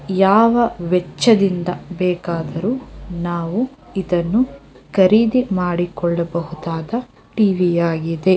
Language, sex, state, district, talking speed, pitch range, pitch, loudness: Kannada, female, Karnataka, Dharwad, 65 wpm, 170-215 Hz, 180 Hz, -18 LUFS